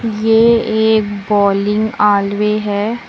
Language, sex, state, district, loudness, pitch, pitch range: Hindi, female, Uttar Pradesh, Lucknow, -14 LUFS, 210 Hz, 205-220 Hz